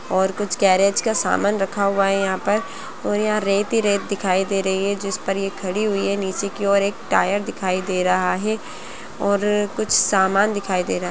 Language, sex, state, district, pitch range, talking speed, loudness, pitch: Hindi, female, Chhattisgarh, Bastar, 190-205 Hz, 215 wpm, -20 LUFS, 200 Hz